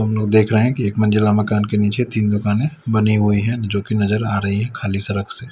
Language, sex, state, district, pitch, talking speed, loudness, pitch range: Hindi, male, Delhi, New Delhi, 105 Hz, 270 wpm, -18 LUFS, 105-110 Hz